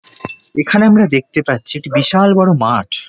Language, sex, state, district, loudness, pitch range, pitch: Bengali, male, West Bengal, Dakshin Dinajpur, -12 LUFS, 135-195 Hz, 150 Hz